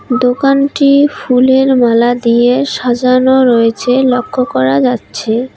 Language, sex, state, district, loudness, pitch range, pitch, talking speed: Bengali, female, West Bengal, Cooch Behar, -11 LUFS, 240-265 Hz, 250 Hz, 95 wpm